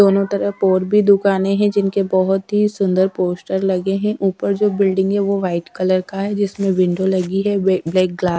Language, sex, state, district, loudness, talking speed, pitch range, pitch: Hindi, female, Haryana, Rohtak, -17 LUFS, 200 wpm, 185-200 Hz, 195 Hz